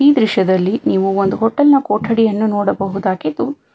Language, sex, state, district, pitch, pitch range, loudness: Kannada, female, Karnataka, Bangalore, 210 Hz, 195-230 Hz, -15 LUFS